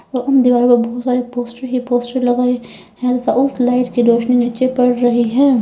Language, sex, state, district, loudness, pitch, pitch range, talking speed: Hindi, female, Uttar Pradesh, Lalitpur, -15 LUFS, 245 Hz, 245-250 Hz, 170 wpm